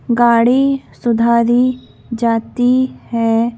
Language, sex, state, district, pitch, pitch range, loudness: Hindi, female, Madhya Pradesh, Bhopal, 235 Hz, 230-250 Hz, -15 LUFS